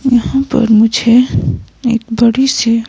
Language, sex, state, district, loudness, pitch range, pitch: Hindi, female, Himachal Pradesh, Shimla, -12 LUFS, 230-255 Hz, 235 Hz